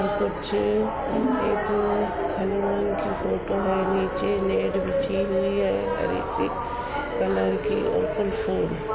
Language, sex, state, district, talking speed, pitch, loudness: Hindi, female, Uttar Pradesh, Budaun, 105 wpm, 185 Hz, -25 LUFS